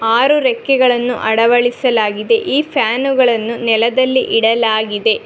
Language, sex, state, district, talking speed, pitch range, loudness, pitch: Kannada, female, Karnataka, Bangalore, 90 wpm, 225-260 Hz, -14 LUFS, 240 Hz